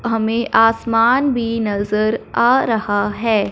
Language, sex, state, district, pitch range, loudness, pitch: Hindi, male, Punjab, Fazilka, 215-235 Hz, -17 LUFS, 225 Hz